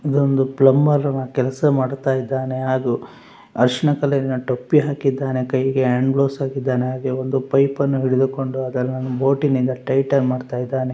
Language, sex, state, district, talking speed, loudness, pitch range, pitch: Kannada, male, Karnataka, Raichur, 135 wpm, -19 LUFS, 130-135 Hz, 135 Hz